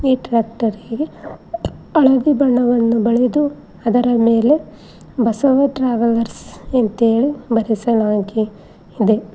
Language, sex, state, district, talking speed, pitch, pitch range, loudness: Kannada, female, Karnataka, Koppal, 85 wpm, 235 Hz, 225-265 Hz, -17 LUFS